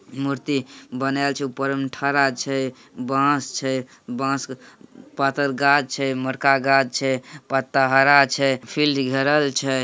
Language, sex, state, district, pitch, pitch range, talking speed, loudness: Hindi, male, Bihar, Samastipur, 135 Hz, 130-140 Hz, 130 wpm, -21 LUFS